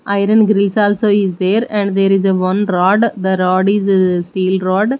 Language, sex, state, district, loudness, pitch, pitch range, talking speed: English, female, Odisha, Nuapada, -14 LUFS, 195 Hz, 185-205 Hz, 180 wpm